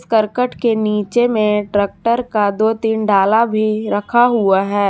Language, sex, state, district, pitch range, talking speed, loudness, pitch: Hindi, female, Jharkhand, Garhwa, 205-230 Hz, 160 wpm, -16 LUFS, 215 Hz